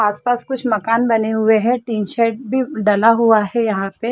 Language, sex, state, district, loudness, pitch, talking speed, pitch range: Hindi, female, Chhattisgarh, Rajnandgaon, -16 LUFS, 225 Hz, 205 wpm, 215-240 Hz